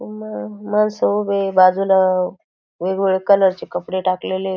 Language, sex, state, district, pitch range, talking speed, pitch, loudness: Marathi, female, Maharashtra, Aurangabad, 185-195 Hz, 145 wpm, 190 Hz, -18 LUFS